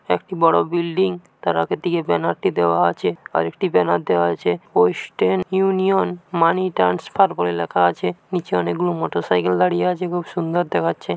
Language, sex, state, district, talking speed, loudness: Bengali, male, West Bengal, Paschim Medinipur, 170 wpm, -20 LUFS